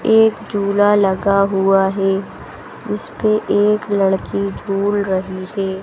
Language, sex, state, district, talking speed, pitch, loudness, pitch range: Hindi, male, Madhya Pradesh, Bhopal, 115 wpm, 195 Hz, -17 LUFS, 190-205 Hz